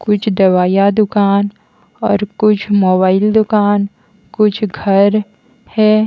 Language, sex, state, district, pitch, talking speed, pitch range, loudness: Hindi, female, Haryana, Jhajjar, 205 Hz, 100 wpm, 200-215 Hz, -13 LUFS